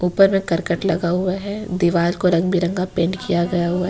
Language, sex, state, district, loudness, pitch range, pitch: Hindi, female, Jharkhand, Ranchi, -19 LUFS, 170-190 Hz, 180 Hz